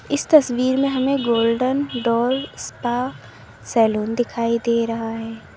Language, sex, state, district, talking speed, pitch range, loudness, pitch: Hindi, female, Uttar Pradesh, Lalitpur, 130 wpm, 230-260 Hz, -20 LUFS, 240 Hz